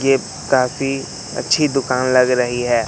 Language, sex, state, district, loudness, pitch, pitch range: Hindi, male, Madhya Pradesh, Katni, -18 LUFS, 130 Hz, 125-135 Hz